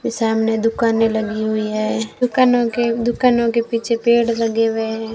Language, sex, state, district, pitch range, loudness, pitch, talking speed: Hindi, female, Rajasthan, Jaisalmer, 225-235 Hz, -18 LUFS, 225 Hz, 165 wpm